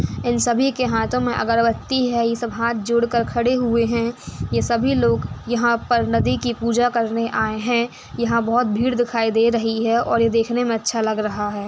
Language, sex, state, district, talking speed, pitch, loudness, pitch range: Hindi, female, Uttar Pradesh, Etah, 210 wpm, 235 Hz, -20 LUFS, 230-240 Hz